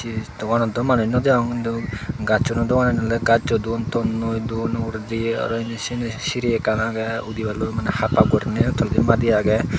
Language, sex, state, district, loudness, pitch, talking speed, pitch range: Chakma, male, Tripura, Dhalai, -21 LUFS, 115 Hz, 170 wpm, 110-115 Hz